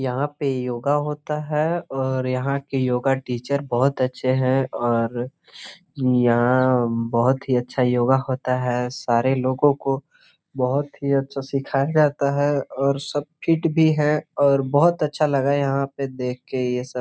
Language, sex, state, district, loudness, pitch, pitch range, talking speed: Hindi, male, Jharkhand, Sahebganj, -22 LUFS, 135 Hz, 125-145 Hz, 160 wpm